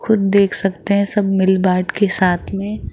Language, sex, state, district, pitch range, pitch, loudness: Hindi, female, Rajasthan, Jaipur, 190-200 Hz, 195 Hz, -16 LUFS